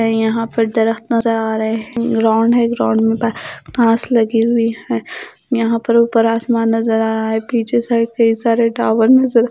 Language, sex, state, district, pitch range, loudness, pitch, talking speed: Hindi, female, Bihar, Katihar, 225-235 Hz, -15 LUFS, 230 Hz, 190 wpm